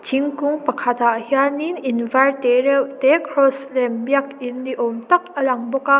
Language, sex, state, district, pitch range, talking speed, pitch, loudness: Mizo, female, Mizoram, Aizawl, 250-280 Hz, 170 wpm, 270 Hz, -19 LUFS